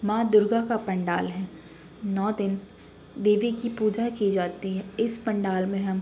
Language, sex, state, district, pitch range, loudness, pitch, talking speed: Hindi, female, Uttar Pradesh, Budaun, 190-220 Hz, -26 LUFS, 200 Hz, 180 wpm